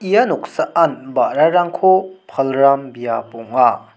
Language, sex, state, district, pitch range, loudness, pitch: Garo, male, Meghalaya, South Garo Hills, 130-185 Hz, -16 LUFS, 140 Hz